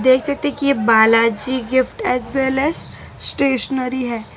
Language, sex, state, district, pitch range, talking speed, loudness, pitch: Hindi, female, Gujarat, Valsad, 235-275 Hz, 95 wpm, -17 LUFS, 260 Hz